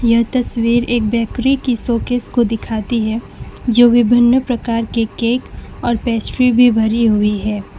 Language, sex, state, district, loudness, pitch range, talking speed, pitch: Hindi, female, West Bengal, Alipurduar, -15 LUFS, 225-245 Hz, 155 wpm, 235 Hz